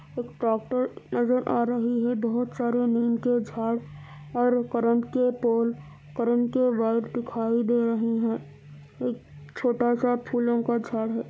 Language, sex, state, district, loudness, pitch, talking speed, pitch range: Hindi, female, Andhra Pradesh, Anantapur, -26 LUFS, 235 Hz, 160 wpm, 225-245 Hz